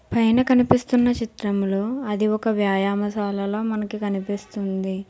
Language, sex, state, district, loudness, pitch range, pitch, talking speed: Telugu, female, Telangana, Hyderabad, -22 LUFS, 200-225 Hz, 210 Hz, 95 wpm